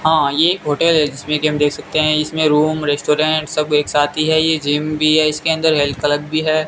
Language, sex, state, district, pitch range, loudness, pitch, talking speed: Hindi, male, Rajasthan, Bikaner, 150-155 Hz, -16 LUFS, 155 Hz, 260 wpm